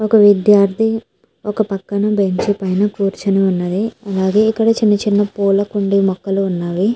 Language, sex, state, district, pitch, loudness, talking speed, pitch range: Telugu, female, Andhra Pradesh, Chittoor, 200 Hz, -15 LUFS, 130 wpm, 195-215 Hz